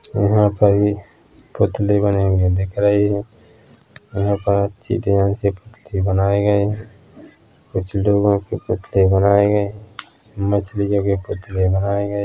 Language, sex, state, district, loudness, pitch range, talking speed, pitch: Hindi, male, Chhattisgarh, Korba, -18 LUFS, 100-105 Hz, 150 wpm, 100 Hz